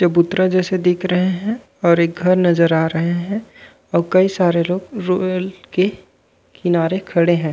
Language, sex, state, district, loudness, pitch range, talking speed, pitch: Chhattisgarhi, male, Chhattisgarh, Raigarh, -17 LUFS, 170-185 Hz, 165 wpm, 180 Hz